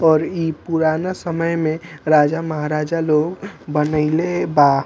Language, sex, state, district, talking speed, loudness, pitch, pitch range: Bhojpuri, male, Bihar, Muzaffarpur, 125 wpm, -19 LUFS, 160 Hz, 150-165 Hz